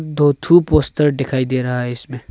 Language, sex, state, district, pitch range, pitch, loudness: Hindi, male, Arunachal Pradesh, Longding, 125-150 Hz, 135 Hz, -16 LUFS